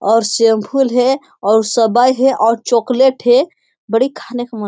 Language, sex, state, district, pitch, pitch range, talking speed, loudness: Hindi, male, Bihar, Jamui, 240 Hz, 225-260 Hz, 180 wpm, -14 LUFS